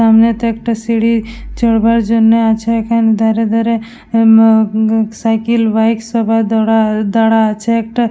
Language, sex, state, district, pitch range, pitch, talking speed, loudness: Bengali, female, West Bengal, Dakshin Dinajpur, 220-230 Hz, 225 Hz, 125 wpm, -12 LUFS